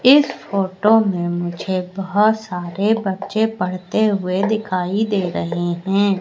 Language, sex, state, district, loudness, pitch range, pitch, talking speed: Hindi, female, Madhya Pradesh, Katni, -19 LUFS, 180-215 Hz, 195 Hz, 125 wpm